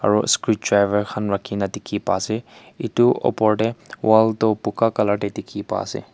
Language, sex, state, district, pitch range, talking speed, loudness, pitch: Nagamese, male, Nagaland, Kohima, 105-110 Hz, 185 wpm, -20 LUFS, 110 Hz